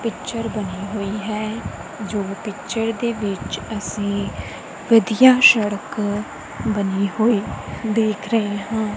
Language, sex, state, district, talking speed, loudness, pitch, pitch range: Punjabi, female, Punjab, Kapurthala, 105 wpm, -20 LUFS, 215 Hz, 205-225 Hz